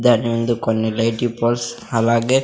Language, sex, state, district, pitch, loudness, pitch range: Telugu, male, Andhra Pradesh, Sri Satya Sai, 115 Hz, -19 LUFS, 115-120 Hz